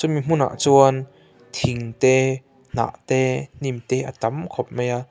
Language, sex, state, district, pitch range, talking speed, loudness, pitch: Mizo, male, Mizoram, Aizawl, 120-135 Hz, 165 wpm, -21 LUFS, 130 Hz